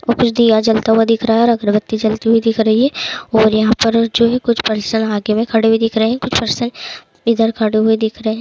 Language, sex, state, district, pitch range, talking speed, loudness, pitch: Hindi, female, Bihar, Sitamarhi, 220-230 Hz, 255 wpm, -14 LUFS, 225 Hz